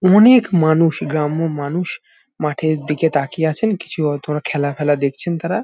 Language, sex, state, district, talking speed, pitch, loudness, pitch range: Bengali, male, West Bengal, Jalpaiguri, 160 wpm, 155 Hz, -17 LUFS, 150-170 Hz